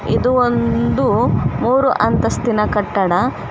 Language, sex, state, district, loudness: Kannada, female, Karnataka, Koppal, -16 LUFS